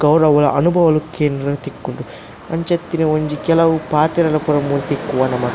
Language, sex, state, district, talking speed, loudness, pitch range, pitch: Tulu, male, Karnataka, Dakshina Kannada, 120 wpm, -17 LUFS, 145-165 Hz, 155 Hz